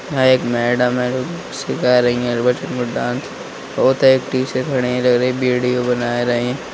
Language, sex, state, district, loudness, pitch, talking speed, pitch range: Hindi, male, Uttar Pradesh, Budaun, -17 LUFS, 125 Hz, 195 wpm, 120-130 Hz